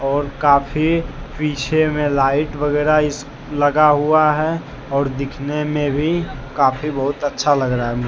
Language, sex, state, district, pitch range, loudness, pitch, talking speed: Hindi, male, Jharkhand, Deoghar, 140-150 Hz, -18 LUFS, 145 Hz, 150 wpm